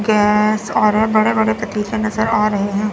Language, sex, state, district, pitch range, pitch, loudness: Hindi, female, Chandigarh, Chandigarh, 210-220 Hz, 215 Hz, -16 LUFS